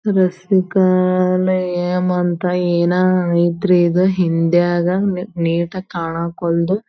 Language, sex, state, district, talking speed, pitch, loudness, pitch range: Kannada, female, Karnataka, Belgaum, 70 wpm, 180 Hz, -17 LUFS, 175-185 Hz